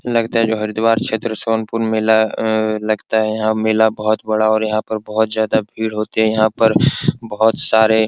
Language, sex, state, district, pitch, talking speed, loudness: Hindi, male, Bihar, Supaul, 110 Hz, 200 wpm, -17 LUFS